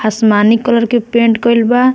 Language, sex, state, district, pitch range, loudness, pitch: Bhojpuri, female, Bihar, Muzaffarpur, 220-240 Hz, -11 LUFS, 235 Hz